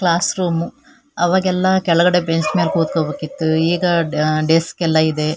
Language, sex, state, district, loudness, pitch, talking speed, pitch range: Kannada, female, Karnataka, Shimoga, -17 LUFS, 170 Hz, 135 wpm, 160-180 Hz